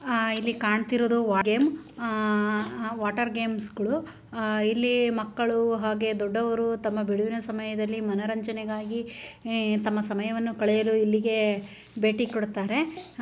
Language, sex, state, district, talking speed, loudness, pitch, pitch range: Kannada, female, Karnataka, Chamarajanagar, 115 wpm, -27 LUFS, 220 Hz, 215-230 Hz